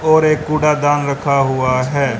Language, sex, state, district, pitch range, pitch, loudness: Hindi, male, Haryana, Rohtak, 135-155 Hz, 145 Hz, -15 LUFS